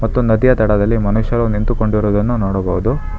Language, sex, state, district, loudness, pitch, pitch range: Kannada, male, Karnataka, Bangalore, -16 LUFS, 110 Hz, 105-115 Hz